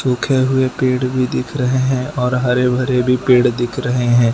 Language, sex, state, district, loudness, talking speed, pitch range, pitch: Hindi, male, Gujarat, Valsad, -16 LUFS, 205 wpm, 125-130 Hz, 125 Hz